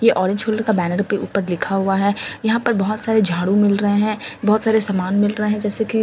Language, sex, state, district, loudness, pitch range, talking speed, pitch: Hindi, female, Delhi, New Delhi, -19 LUFS, 195-220 Hz, 260 wpm, 205 Hz